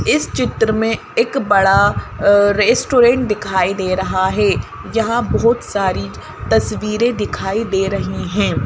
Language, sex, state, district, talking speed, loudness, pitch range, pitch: Hindi, female, Madhya Pradesh, Bhopal, 130 wpm, -16 LUFS, 190-225 Hz, 205 Hz